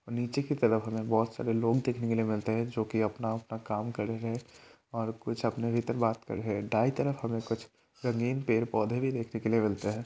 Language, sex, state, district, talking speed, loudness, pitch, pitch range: Hindi, male, Bihar, Kishanganj, 230 wpm, -32 LUFS, 115 Hz, 110-120 Hz